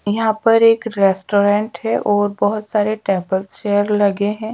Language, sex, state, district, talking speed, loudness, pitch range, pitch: Hindi, female, Bihar, Patna, 160 wpm, -17 LUFS, 200-215 Hz, 205 Hz